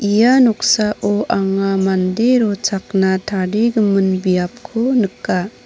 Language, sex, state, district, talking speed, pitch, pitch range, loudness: Garo, female, Meghalaya, North Garo Hills, 85 wpm, 205 Hz, 190-225 Hz, -16 LUFS